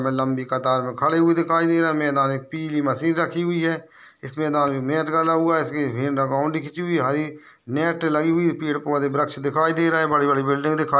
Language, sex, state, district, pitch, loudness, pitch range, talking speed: Hindi, male, Rajasthan, Churu, 150 Hz, -21 LUFS, 140-165 Hz, 250 wpm